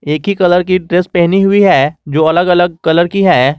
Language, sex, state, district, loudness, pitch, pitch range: Hindi, male, Jharkhand, Garhwa, -11 LUFS, 175 Hz, 160-185 Hz